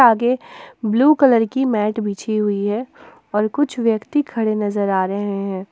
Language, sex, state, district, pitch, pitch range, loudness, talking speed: Hindi, female, Jharkhand, Ranchi, 220 Hz, 205-255 Hz, -19 LUFS, 170 wpm